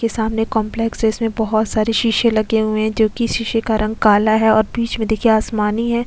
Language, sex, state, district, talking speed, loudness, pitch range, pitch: Hindi, female, Chhattisgarh, Kabirdham, 245 wpm, -17 LUFS, 215-225 Hz, 220 Hz